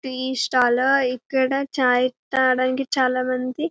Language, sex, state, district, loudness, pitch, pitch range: Telugu, female, Telangana, Karimnagar, -21 LUFS, 255 Hz, 255-265 Hz